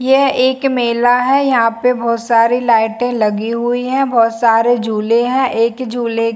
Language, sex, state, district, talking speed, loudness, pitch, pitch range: Hindi, female, Chhattisgarh, Bilaspur, 170 wpm, -14 LUFS, 240 Hz, 230-255 Hz